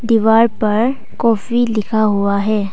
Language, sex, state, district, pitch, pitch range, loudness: Hindi, female, Arunachal Pradesh, Papum Pare, 220 Hz, 210-230 Hz, -15 LUFS